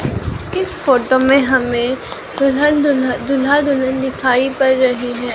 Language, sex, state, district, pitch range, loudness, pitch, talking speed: Hindi, female, Bihar, Katihar, 255-275 Hz, -15 LUFS, 265 Hz, 125 wpm